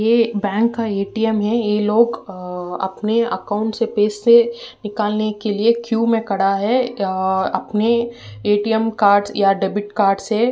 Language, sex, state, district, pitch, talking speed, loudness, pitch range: Hindi, female, Uttar Pradesh, Ghazipur, 210 Hz, 160 wpm, -18 LUFS, 200-230 Hz